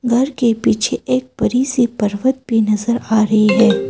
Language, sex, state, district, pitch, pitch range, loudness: Hindi, female, Arunachal Pradesh, Papum Pare, 235 Hz, 215-255 Hz, -16 LUFS